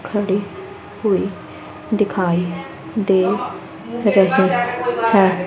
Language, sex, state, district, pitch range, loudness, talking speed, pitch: Hindi, female, Haryana, Rohtak, 190-220 Hz, -18 LUFS, 65 wpm, 195 Hz